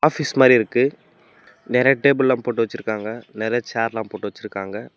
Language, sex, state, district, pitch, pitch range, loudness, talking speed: Tamil, male, Tamil Nadu, Namakkal, 115 Hz, 110-130 Hz, -20 LUFS, 130 wpm